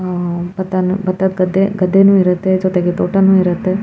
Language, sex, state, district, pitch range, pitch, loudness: Kannada, female, Karnataka, Shimoga, 180-190 Hz, 185 Hz, -14 LUFS